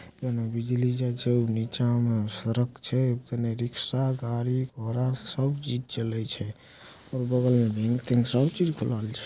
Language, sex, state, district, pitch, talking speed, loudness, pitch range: Angika, male, Bihar, Supaul, 120 Hz, 150 wpm, -28 LUFS, 115-130 Hz